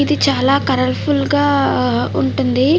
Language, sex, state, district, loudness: Telugu, female, Andhra Pradesh, Chittoor, -15 LUFS